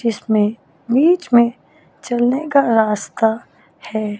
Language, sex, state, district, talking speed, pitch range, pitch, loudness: Hindi, female, Chandigarh, Chandigarh, 100 wpm, 215-250 Hz, 230 Hz, -17 LUFS